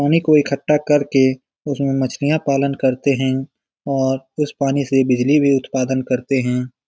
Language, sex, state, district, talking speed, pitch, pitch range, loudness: Hindi, male, Bihar, Lakhisarai, 165 wpm, 135 Hz, 130-145 Hz, -18 LUFS